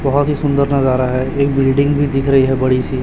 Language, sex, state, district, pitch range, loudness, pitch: Hindi, male, Chhattisgarh, Raipur, 130-140 Hz, -15 LUFS, 135 Hz